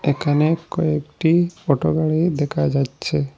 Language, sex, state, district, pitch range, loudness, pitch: Bengali, male, Assam, Hailakandi, 140-165 Hz, -20 LUFS, 150 Hz